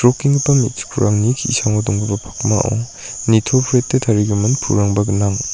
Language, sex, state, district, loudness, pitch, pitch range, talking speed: Garo, male, Meghalaya, North Garo Hills, -16 LUFS, 115 Hz, 105-130 Hz, 100 wpm